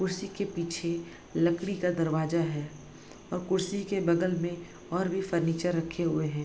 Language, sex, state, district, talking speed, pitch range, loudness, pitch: Hindi, female, Bihar, Bhagalpur, 165 wpm, 165-185 Hz, -30 LUFS, 170 Hz